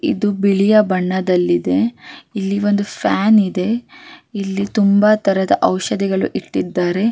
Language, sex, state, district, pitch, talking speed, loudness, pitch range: Kannada, female, Karnataka, Raichur, 200 Hz, 60 wpm, -16 LUFS, 190-215 Hz